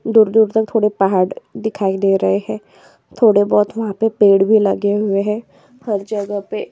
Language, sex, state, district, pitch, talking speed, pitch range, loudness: Hindi, female, Chhattisgarh, Korba, 210 Hz, 180 wpm, 195-220 Hz, -16 LUFS